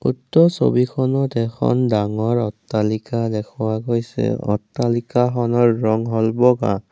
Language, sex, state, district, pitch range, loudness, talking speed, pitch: Assamese, male, Assam, Kamrup Metropolitan, 110-125 Hz, -19 LUFS, 95 wpm, 115 Hz